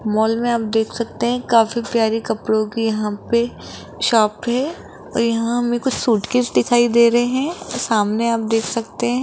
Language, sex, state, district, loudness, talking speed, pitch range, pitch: Hindi, female, Rajasthan, Jaipur, -19 LUFS, 190 wpm, 220-240 Hz, 230 Hz